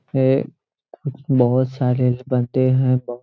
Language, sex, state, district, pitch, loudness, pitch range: Hindi, male, Bihar, Muzaffarpur, 130 Hz, -19 LUFS, 125-130 Hz